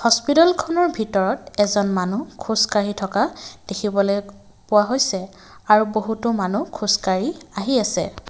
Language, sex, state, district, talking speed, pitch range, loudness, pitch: Assamese, male, Assam, Kamrup Metropolitan, 110 wpm, 200-255 Hz, -20 LUFS, 210 Hz